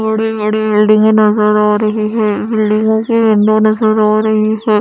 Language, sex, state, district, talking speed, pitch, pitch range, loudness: Hindi, female, Odisha, Khordha, 175 wpm, 215 Hz, 215-220 Hz, -12 LUFS